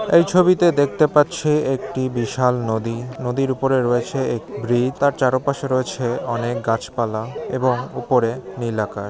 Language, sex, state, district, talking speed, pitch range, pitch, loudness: Bengali, male, West Bengal, Jhargram, 150 wpm, 120-140 Hz, 130 Hz, -20 LUFS